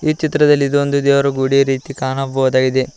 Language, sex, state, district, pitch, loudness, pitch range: Kannada, male, Karnataka, Koppal, 135 Hz, -15 LUFS, 130-140 Hz